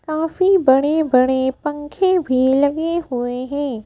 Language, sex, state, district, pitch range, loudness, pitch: Hindi, female, Madhya Pradesh, Bhopal, 260-325 Hz, -18 LUFS, 285 Hz